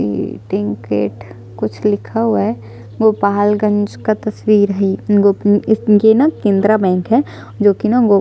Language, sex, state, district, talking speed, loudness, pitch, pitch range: Hindi, female, Chhattisgarh, Sukma, 160 wpm, -15 LUFS, 205 Hz, 180-215 Hz